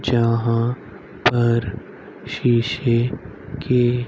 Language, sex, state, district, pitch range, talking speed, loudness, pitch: Hindi, male, Haryana, Rohtak, 115-125 Hz, 60 wpm, -20 LUFS, 120 Hz